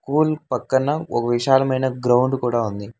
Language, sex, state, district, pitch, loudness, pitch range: Telugu, male, Telangana, Hyderabad, 130 Hz, -20 LUFS, 120-135 Hz